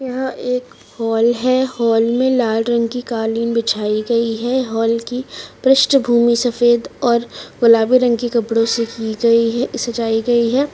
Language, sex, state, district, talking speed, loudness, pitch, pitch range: Hindi, female, Rajasthan, Churu, 160 wpm, -16 LUFS, 235 Hz, 230-250 Hz